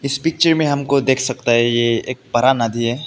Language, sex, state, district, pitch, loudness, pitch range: Hindi, male, Meghalaya, West Garo Hills, 130 Hz, -17 LUFS, 120-140 Hz